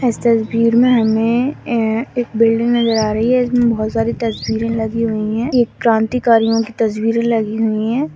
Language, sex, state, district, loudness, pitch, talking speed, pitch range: Hindi, female, Bihar, Madhepura, -16 LUFS, 230 Hz, 160 wpm, 225-240 Hz